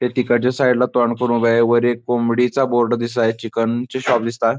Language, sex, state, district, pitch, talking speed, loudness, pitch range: Marathi, male, Maharashtra, Pune, 120 Hz, 250 wpm, -18 LUFS, 115-125 Hz